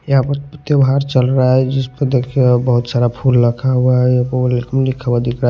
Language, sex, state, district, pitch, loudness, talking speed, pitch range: Hindi, male, Punjab, Pathankot, 130 Hz, -15 LUFS, 220 wpm, 125-135 Hz